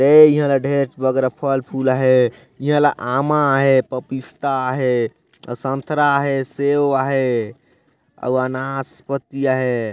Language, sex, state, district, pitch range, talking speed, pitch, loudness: Chhattisgarhi, male, Chhattisgarh, Sarguja, 130-140 Hz, 115 wpm, 135 Hz, -18 LUFS